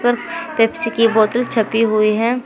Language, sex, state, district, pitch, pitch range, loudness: Hindi, female, Uttar Pradesh, Shamli, 230 Hz, 220-245 Hz, -16 LUFS